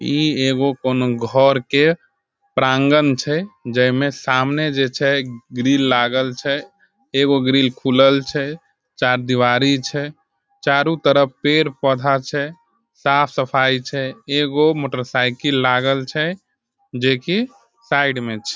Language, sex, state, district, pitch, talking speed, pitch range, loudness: Maithili, male, Bihar, Sitamarhi, 140 Hz, 120 wpm, 130-150 Hz, -18 LUFS